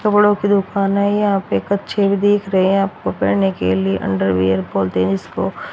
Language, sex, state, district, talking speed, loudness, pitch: Hindi, female, Haryana, Rohtak, 180 wpm, -17 LUFS, 195 Hz